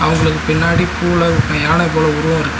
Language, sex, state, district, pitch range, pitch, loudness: Tamil, male, Tamil Nadu, Nilgiris, 155-170 Hz, 160 Hz, -14 LUFS